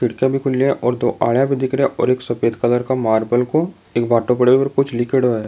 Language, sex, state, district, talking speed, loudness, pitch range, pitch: Rajasthani, male, Rajasthan, Nagaur, 295 wpm, -17 LUFS, 120-135 Hz, 125 Hz